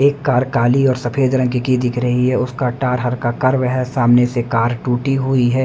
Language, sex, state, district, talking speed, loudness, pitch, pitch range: Hindi, male, Haryana, Rohtak, 235 wpm, -16 LUFS, 125 Hz, 125-130 Hz